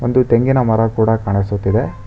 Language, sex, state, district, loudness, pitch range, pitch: Kannada, male, Karnataka, Bangalore, -15 LUFS, 100-120 Hz, 110 Hz